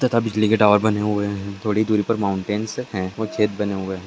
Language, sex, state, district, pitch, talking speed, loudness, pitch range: Hindi, male, Bihar, Madhepura, 105 Hz, 250 wpm, -21 LUFS, 100-110 Hz